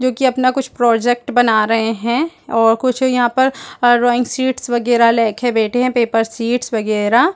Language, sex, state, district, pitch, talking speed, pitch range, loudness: Hindi, female, Chhattisgarh, Bastar, 245 Hz, 180 wpm, 230-255 Hz, -15 LUFS